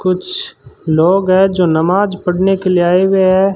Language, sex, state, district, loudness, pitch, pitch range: Hindi, male, Rajasthan, Bikaner, -12 LUFS, 185 Hz, 180-195 Hz